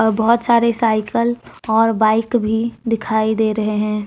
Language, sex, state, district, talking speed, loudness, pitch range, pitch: Hindi, female, Jharkhand, Deoghar, 150 wpm, -17 LUFS, 220-235 Hz, 225 Hz